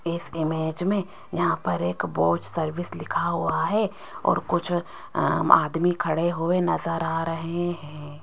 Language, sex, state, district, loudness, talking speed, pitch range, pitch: Hindi, female, Rajasthan, Jaipur, -25 LUFS, 145 wpm, 150-175 Hz, 165 Hz